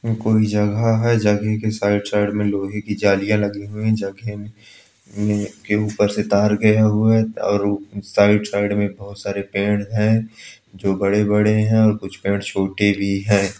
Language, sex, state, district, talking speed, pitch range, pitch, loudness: Hindi, male, Uttar Pradesh, Jalaun, 175 wpm, 100-105 Hz, 105 Hz, -19 LUFS